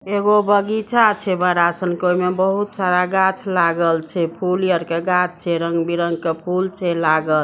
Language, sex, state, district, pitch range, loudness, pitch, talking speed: Maithili, female, Bihar, Samastipur, 170-190 Hz, -18 LUFS, 180 Hz, 185 wpm